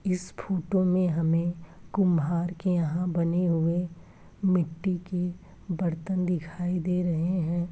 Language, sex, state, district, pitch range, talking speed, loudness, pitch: Hindi, female, Uttar Pradesh, Jalaun, 170-180 Hz, 125 wpm, -28 LUFS, 175 Hz